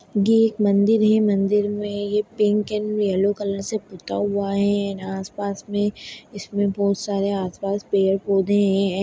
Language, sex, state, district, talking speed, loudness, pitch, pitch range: Hindi, female, Bihar, Darbhanga, 165 wpm, -21 LUFS, 205 Hz, 195-210 Hz